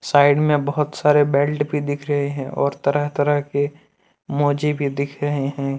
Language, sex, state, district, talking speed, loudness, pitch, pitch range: Hindi, male, Jharkhand, Deoghar, 185 wpm, -20 LUFS, 145 Hz, 140-145 Hz